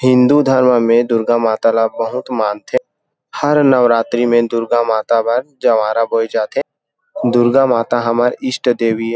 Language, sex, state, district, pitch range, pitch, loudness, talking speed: Chhattisgarhi, male, Chhattisgarh, Rajnandgaon, 115-125 Hz, 120 Hz, -14 LUFS, 155 wpm